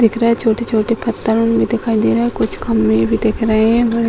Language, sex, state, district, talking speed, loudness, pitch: Hindi, female, Bihar, Sitamarhi, 280 wpm, -15 LUFS, 225 Hz